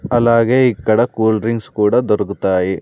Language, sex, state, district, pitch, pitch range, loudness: Telugu, male, Andhra Pradesh, Sri Satya Sai, 110 Hz, 105-120 Hz, -15 LUFS